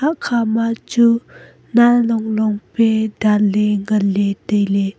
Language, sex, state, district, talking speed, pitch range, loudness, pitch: Wancho, female, Arunachal Pradesh, Longding, 110 wpm, 205-230 Hz, -16 LUFS, 220 Hz